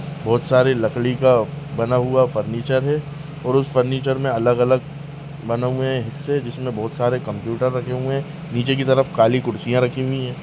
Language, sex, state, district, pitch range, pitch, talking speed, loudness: Kumaoni, male, Uttarakhand, Tehri Garhwal, 120-135 Hz, 130 Hz, 190 wpm, -20 LUFS